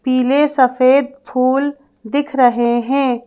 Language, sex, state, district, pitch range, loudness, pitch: Hindi, female, Madhya Pradesh, Bhopal, 250-275 Hz, -15 LUFS, 260 Hz